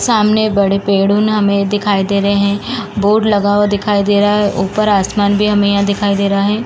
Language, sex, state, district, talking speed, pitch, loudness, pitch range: Hindi, female, Uttar Pradesh, Jalaun, 215 wpm, 205 Hz, -13 LUFS, 200-210 Hz